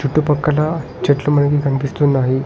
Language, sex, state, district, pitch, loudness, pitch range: Telugu, male, Telangana, Hyderabad, 145 Hz, -16 LUFS, 140-150 Hz